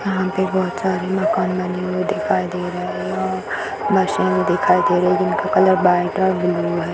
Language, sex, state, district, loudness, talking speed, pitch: Hindi, female, Bihar, Sitamarhi, -19 LUFS, 190 wpm, 185 Hz